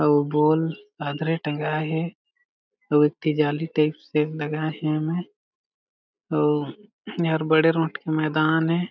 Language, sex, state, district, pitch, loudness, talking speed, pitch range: Chhattisgarhi, male, Chhattisgarh, Jashpur, 155 Hz, -23 LUFS, 135 wpm, 150-165 Hz